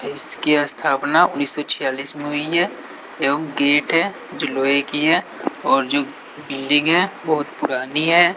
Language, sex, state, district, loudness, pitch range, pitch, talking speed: Hindi, male, Bihar, West Champaran, -18 LUFS, 140-155 Hz, 145 Hz, 160 wpm